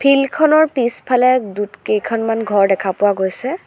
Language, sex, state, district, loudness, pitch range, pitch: Assamese, female, Assam, Sonitpur, -16 LUFS, 205-265 Hz, 230 Hz